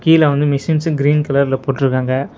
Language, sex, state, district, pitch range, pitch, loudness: Tamil, male, Tamil Nadu, Nilgiris, 135-155 Hz, 140 Hz, -15 LUFS